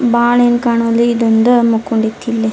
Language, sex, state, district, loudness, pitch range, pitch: Kannada, female, Karnataka, Dharwad, -13 LUFS, 225-240 Hz, 235 Hz